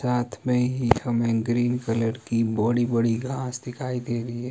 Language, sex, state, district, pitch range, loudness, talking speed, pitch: Hindi, male, Himachal Pradesh, Shimla, 115-125 Hz, -25 LUFS, 185 wpm, 120 Hz